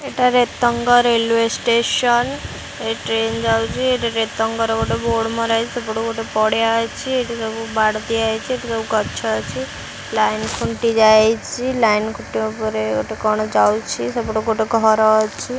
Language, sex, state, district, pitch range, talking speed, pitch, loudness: Odia, female, Odisha, Khordha, 215-235 Hz, 135 wpm, 225 Hz, -18 LUFS